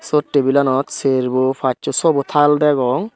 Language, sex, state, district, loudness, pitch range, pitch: Chakma, male, Tripura, Dhalai, -16 LUFS, 130-150 Hz, 140 Hz